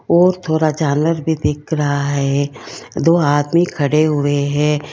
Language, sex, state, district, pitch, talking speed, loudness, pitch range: Hindi, female, Karnataka, Bangalore, 150 Hz, 145 wpm, -16 LUFS, 145-160 Hz